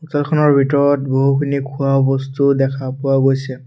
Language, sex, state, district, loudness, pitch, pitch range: Assamese, male, Assam, Sonitpur, -16 LUFS, 135 Hz, 135-140 Hz